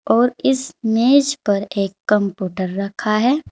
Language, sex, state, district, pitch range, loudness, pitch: Hindi, female, Uttar Pradesh, Shamli, 200-260 Hz, -18 LUFS, 215 Hz